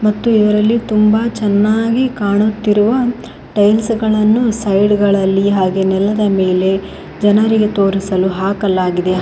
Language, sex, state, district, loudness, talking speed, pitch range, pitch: Kannada, female, Karnataka, Koppal, -14 LUFS, 100 wpm, 195-220 Hz, 210 Hz